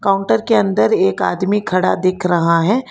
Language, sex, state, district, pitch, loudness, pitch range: Hindi, female, Karnataka, Bangalore, 195 Hz, -15 LUFS, 180-210 Hz